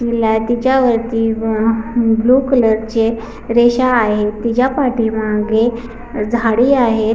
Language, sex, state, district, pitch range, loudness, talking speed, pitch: Marathi, female, Maharashtra, Pune, 225-240 Hz, -15 LUFS, 125 wpm, 230 Hz